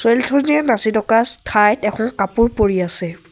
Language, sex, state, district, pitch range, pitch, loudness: Assamese, male, Assam, Sonitpur, 200-230 Hz, 220 Hz, -16 LUFS